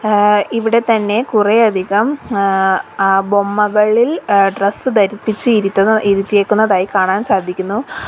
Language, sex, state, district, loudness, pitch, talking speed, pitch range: Malayalam, female, Kerala, Kollam, -14 LUFS, 210 Hz, 95 wpm, 195-225 Hz